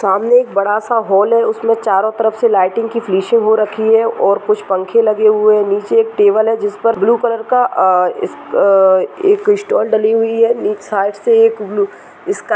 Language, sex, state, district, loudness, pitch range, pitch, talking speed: Hindi, female, Uttar Pradesh, Muzaffarnagar, -13 LUFS, 205-230 Hz, 220 Hz, 225 wpm